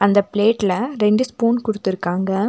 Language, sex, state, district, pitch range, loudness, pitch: Tamil, female, Tamil Nadu, Nilgiris, 195-230 Hz, -19 LUFS, 205 Hz